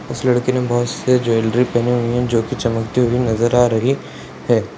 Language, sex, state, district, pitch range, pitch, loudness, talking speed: Hindi, male, Bihar, Purnia, 115-125 Hz, 120 Hz, -17 LUFS, 200 wpm